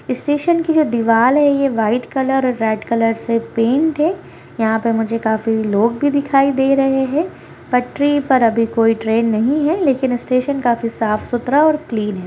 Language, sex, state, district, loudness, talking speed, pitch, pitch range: Hindi, female, Bihar, Kishanganj, -16 LUFS, 180 wpm, 245 Hz, 225-280 Hz